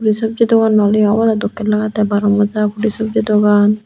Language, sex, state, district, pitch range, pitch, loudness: Chakma, female, Tripura, Unakoti, 210-220 Hz, 215 Hz, -14 LUFS